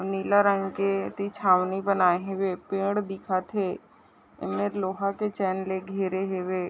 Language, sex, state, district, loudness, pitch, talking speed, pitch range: Chhattisgarhi, female, Chhattisgarh, Raigarh, -27 LUFS, 195 Hz, 160 wpm, 185-200 Hz